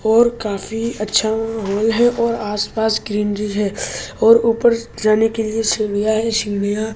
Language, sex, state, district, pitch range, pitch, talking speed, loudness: Hindi, male, Delhi, New Delhi, 210-225 Hz, 220 Hz, 155 wpm, -18 LUFS